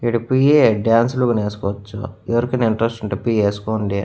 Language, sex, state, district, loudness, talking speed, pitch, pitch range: Telugu, male, Andhra Pradesh, Annamaya, -18 LUFS, 150 wpm, 115 Hz, 105-120 Hz